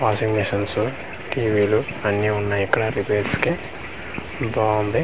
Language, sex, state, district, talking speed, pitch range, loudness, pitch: Telugu, male, Andhra Pradesh, Manyam, 130 wpm, 105-110 Hz, -22 LUFS, 105 Hz